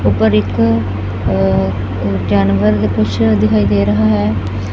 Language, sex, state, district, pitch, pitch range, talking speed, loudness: Punjabi, female, Punjab, Fazilka, 100 Hz, 95-105 Hz, 115 wpm, -14 LUFS